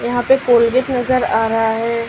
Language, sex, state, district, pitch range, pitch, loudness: Hindi, female, Maharashtra, Chandrapur, 230-255 Hz, 240 Hz, -15 LUFS